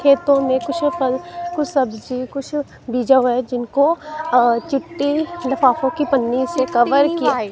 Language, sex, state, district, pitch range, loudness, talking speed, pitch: Hindi, female, Punjab, Kapurthala, 255-295 Hz, -18 LUFS, 150 wpm, 270 Hz